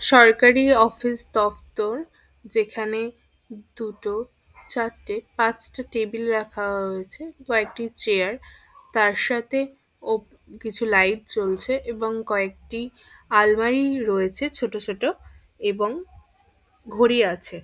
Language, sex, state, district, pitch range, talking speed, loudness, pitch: Bengali, female, West Bengal, Purulia, 215-270 Hz, 80 wpm, -23 LUFS, 230 Hz